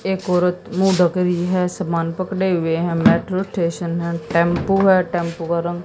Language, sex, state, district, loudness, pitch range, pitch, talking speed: Hindi, female, Haryana, Jhajjar, -19 LUFS, 170-185 Hz, 180 Hz, 185 wpm